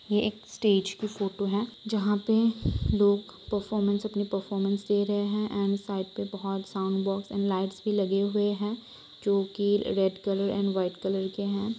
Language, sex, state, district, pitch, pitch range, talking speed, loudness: Hindi, female, Bihar, Saran, 200 Hz, 195-210 Hz, 190 wpm, -28 LUFS